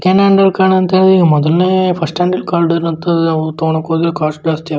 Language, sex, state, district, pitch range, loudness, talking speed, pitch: Kannada, male, Karnataka, Shimoga, 160-185 Hz, -13 LUFS, 50 wpm, 170 Hz